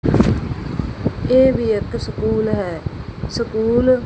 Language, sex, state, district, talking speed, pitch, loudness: Punjabi, female, Punjab, Fazilka, 105 wpm, 220 Hz, -19 LUFS